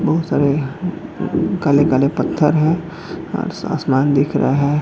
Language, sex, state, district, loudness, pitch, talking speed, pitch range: Hindi, male, Jharkhand, Jamtara, -17 LUFS, 155 Hz, 110 wpm, 140-170 Hz